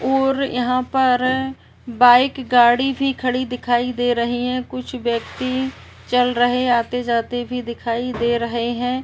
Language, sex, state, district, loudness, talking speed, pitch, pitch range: Hindi, female, Uttar Pradesh, Varanasi, -19 LUFS, 145 wpm, 250 Hz, 240-255 Hz